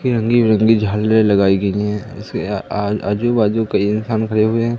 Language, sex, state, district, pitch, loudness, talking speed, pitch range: Hindi, male, Madhya Pradesh, Katni, 110 Hz, -16 LUFS, 175 wpm, 105-115 Hz